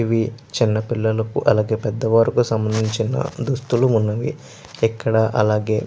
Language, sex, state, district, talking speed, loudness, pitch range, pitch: Telugu, male, Andhra Pradesh, Chittoor, 125 wpm, -20 LUFS, 110-120 Hz, 115 Hz